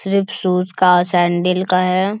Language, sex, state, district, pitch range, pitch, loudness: Hindi, male, Bihar, Bhagalpur, 180-190 Hz, 185 Hz, -16 LUFS